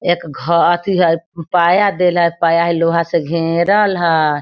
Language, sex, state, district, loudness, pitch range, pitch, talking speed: Hindi, female, Bihar, Sitamarhi, -14 LUFS, 165-175 Hz, 170 Hz, 175 wpm